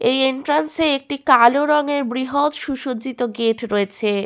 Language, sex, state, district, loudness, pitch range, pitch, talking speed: Bengali, female, West Bengal, Malda, -19 LUFS, 235-290 Hz, 265 Hz, 140 wpm